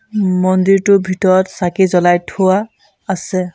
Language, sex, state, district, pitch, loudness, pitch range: Assamese, male, Assam, Sonitpur, 190 Hz, -14 LUFS, 185-200 Hz